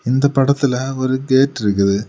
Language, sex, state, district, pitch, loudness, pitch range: Tamil, male, Tamil Nadu, Kanyakumari, 130 Hz, -16 LUFS, 115-135 Hz